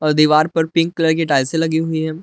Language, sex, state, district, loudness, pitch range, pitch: Hindi, male, Jharkhand, Palamu, -16 LUFS, 155-165 Hz, 160 Hz